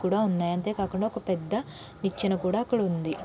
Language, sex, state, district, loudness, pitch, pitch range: Telugu, female, Andhra Pradesh, Srikakulam, -28 LUFS, 190 Hz, 175-210 Hz